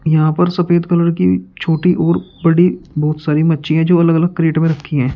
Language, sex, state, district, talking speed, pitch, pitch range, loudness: Hindi, male, Uttar Pradesh, Shamli, 220 wpm, 165 Hz, 155-170 Hz, -14 LUFS